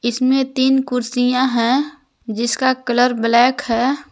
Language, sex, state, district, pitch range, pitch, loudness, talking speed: Hindi, female, Jharkhand, Garhwa, 240-265 Hz, 250 Hz, -17 LUFS, 115 wpm